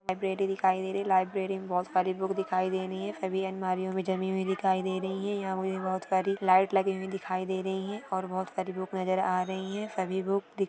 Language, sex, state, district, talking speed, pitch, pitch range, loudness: Hindi, female, Maharashtra, Dhule, 235 wpm, 190 Hz, 185-195 Hz, -30 LUFS